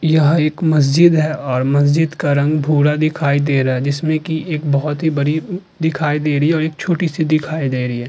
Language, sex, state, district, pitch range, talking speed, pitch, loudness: Hindi, female, Uttar Pradesh, Hamirpur, 145-160 Hz, 230 wpm, 155 Hz, -16 LUFS